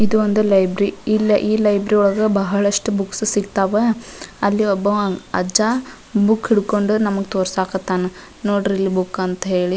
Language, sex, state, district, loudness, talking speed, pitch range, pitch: Kannada, female, Karnataka, Dharwad, -18 LUFS, 125 wpm, 195-215 Hz, 205 Hz